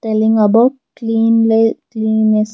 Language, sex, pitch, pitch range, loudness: English, female, 225 Hz, 220-225 Hz, -13 LUFS